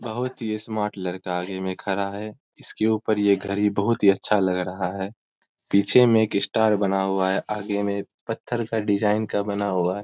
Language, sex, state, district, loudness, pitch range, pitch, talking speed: Hindi, male, Bihar, Gopalganj, -23 LUFS, 95-110 Hz, 100 Hz, 195 wpm